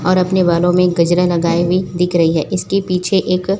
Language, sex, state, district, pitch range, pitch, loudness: Hindi, female, Chhattisgarh, Raipur, 170-185 Hz, 180 Hz, -15 LUFS